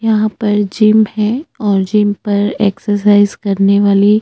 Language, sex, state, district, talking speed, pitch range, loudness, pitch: Hindi, female, Chhattisgarh, Sukma, 140 wpm, 205-215 Hz, -13 LUFS, 205 Hz